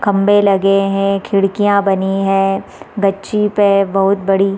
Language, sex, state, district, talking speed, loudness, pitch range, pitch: Hindi, female, Chhattisgarh, Raigarh, 145 wpm, -14 LUFS, 195-205 Hz, 195 Hz